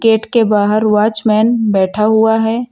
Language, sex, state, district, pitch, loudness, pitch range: Hindi, female, Uttar Pradesh, Lucknow, 220 Hz, -12 LUFS, 215-225 Hz